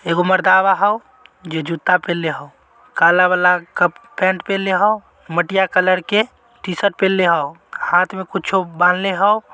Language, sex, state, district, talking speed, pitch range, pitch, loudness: Magahi, male, Bihar, Samastipur, 150 wpm, 175-195 Hz, 185 Hz, -17 LUFS